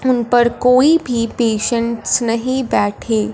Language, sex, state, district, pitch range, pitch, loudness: Hindi, female, Punjab, Fazilka, 230-250 Hz, 235 Hz, -15 LUFS